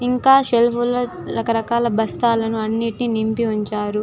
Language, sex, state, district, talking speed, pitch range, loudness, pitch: Telugu, female, Andhra Pradesh, Chittoor, 120 wpm, 220-240 Hz, -19 LUFS, 230 Hz